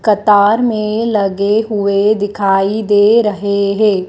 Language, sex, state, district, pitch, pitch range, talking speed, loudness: Hindi, female, Madhya Pradesh, Dhar, 205 Hz, 200-215 Hz, 115 wpm, -13 LUFS